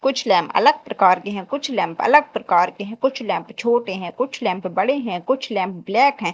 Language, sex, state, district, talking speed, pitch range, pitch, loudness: Hindi, female, Madhya Pradesh, Dhar, 225 wpm, 185-265 Hz, 220 Hz, -20 LUFS